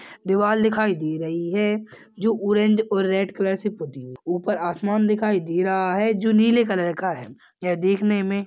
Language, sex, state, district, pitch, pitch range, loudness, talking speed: Hindi, male, Chhattisgarh, Balrampur, 195 Hz, 180-210 Hz, -22 LUFS, 185 wpm